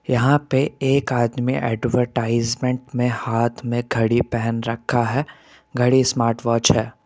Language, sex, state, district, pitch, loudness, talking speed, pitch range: Hindi, male, Rajasthan, Jaipur, 120 Hz, -20 LUFS, 135 wpm, 115-130 Hz